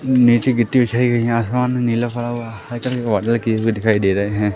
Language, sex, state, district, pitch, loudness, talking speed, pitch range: Hindi, male, Madhya Pradesh, Katni, 120 Hz, -18 LUFS, 185 wpm, 110-125 Hz